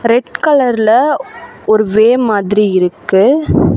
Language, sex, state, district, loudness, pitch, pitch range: Tamil, female, Tamil Nadu, Chennai, -11 LUFS, 215 Hz, 210-245 Hz